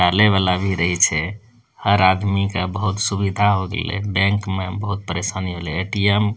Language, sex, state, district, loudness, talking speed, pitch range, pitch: Angika, male, Bihar, Bhagalpur, -19 LUFS, 180 wpm, 95-105 Hz, 100 Hz